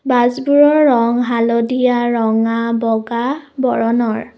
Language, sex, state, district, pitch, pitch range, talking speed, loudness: Assamese, female, Assam, Kamrup Metropolitan, 240 Hz, 230-255 Hz, 80 wpm, -15 LUFS